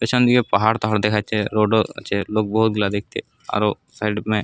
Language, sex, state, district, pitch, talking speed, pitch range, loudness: Bengali, male, Jharkhand, Jamtara, 105 Hz, 230 wpm, 105-110 Hz, -20 LUFS